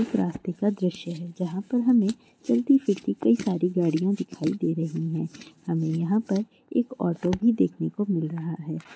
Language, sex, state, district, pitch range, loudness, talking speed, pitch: Hindi, female, Chhattisgarh, Korba, 165-225 Hz, -26 LUFS, 180 wpm, 190 Hz